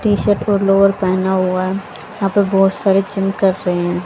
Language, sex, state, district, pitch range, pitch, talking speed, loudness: Hindi, female, Haryana, Jhajjar, 185-200 Hz, 195 Hz, 205 wpm, -16 LUFS